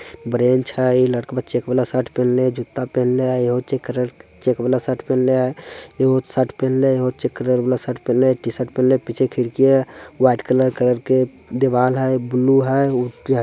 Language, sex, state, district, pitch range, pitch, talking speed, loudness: Hindi, male, Bihar, Jamui, 125-130 Hz, 130 Hz, 220 wpm, -19 LUFS